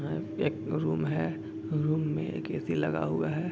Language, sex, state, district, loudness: Hindi, male, Bihar, East Champaran, -31 LUFS